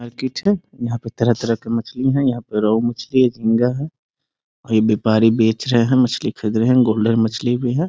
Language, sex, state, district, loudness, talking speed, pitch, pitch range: Hindi, male, Bihar, East Champaran, -18 LUFS, 230 wpm, 120 Hz, 115-130 Hz